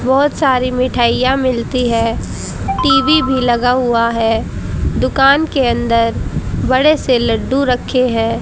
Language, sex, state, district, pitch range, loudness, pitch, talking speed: Hindi, female, Haryana, Charkhi Dadri, 235-265 Hz, -14 LUFS, 255 Hz, 130 wpm